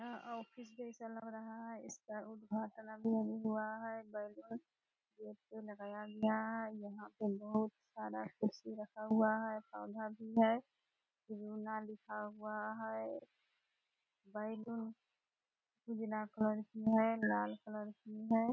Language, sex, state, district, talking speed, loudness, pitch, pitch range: Hindi, female, Bihar, Purnia, 135 wpm, -42 LUFS, 220 Hz, 210-225 Hz